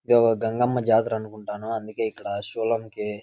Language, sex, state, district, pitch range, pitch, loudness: Telugu, male, Andhra Pradesh, Visakhapatnam, 110-115 Hz, 110 Hz, -25 LUFS